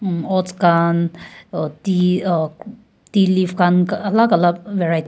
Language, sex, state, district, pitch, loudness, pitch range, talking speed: Nagamese, female, Nagaland, Kohima, 180 Hz, -17 LUFS, 170-195 Hz, 120 wpm